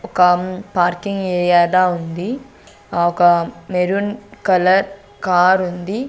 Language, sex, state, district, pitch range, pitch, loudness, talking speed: Telugu, female, Andhra Pradesh, Sri Satya Sai, 175-200 Hz, 185 Hz, -17 LUFS, 100 wpm